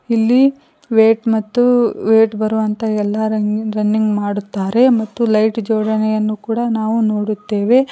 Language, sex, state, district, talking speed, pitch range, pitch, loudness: Kannada, female, Karnataka, Koppal, 115 wpm, 215-230 Hz, 220 Hz, -16 LUFS